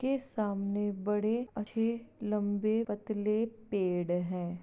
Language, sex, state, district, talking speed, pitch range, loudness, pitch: Hindi, female, Bihar, Jahanabad, 105 wpm, 200-225 Hz, -33 LUFS, 210 Hz